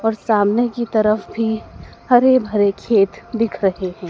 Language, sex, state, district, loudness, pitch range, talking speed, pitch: Hindi, female, Madhya Pradesh, Dhar, -17 LUFS, 205-230 Hz, 160 wpm, 220 Hz